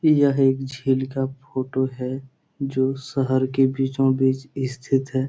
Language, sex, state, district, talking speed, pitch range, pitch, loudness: Hindi, male, Bihar, Supaul, 160 wpm, 130-135 Hz, 135 Hz, -23 LUFS